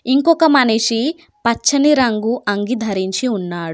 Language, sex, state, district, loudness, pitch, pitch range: Telugu, female, Telangana, Komaram Bheem, -16 LUFS, 235 Hz, 205-280 Hz